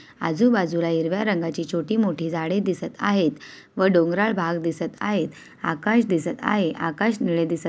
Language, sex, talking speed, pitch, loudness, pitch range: Awadhi, female, 155 wpm, 170 Hz, -23 LUFS, 165-205 Hz